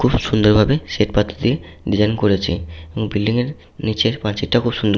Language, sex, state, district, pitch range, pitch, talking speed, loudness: Bengali, male, West Bengal, Malda, 100-120 Hz, 105 Hz, 195 wpm, -18 LUFS